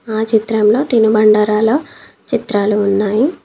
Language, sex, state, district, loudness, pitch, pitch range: Telugu, female, Telangana, Komaram Bheem, -14 LUFS, 220 Hz, 210-230 Hz